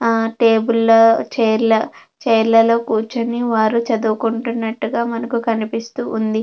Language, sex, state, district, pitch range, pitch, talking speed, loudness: Telugu, female, Andhra Pradesh, Anantapur, 225-235 Hz, 225 Hz, 120 wpm, -17 LUFS